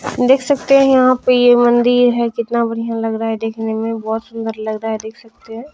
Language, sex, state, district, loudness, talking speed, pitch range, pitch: Maithili, female, Bihar, Kishanganj, -15 LUFS, 230 wpm, 225-245 Hz, 230 Hz